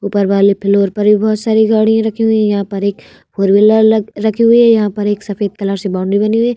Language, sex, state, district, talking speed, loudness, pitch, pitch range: Hindi, female, Bihar, Vaishali, 285 wpm, -12 LUFS, 210 Hz, 200-220 Hz